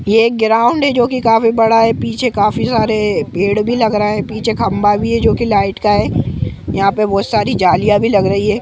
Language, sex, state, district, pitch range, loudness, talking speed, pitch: Hindi, female, Jharkhand, Jamtara, 205-230 Hz, -14 LUFS, 235 wpm, 215 Hz